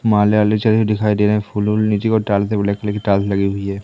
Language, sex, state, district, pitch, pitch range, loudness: Hindi, male, Madhya Pradesh, Katni, 105 Hz, 100-105 Hz, -17 LUFS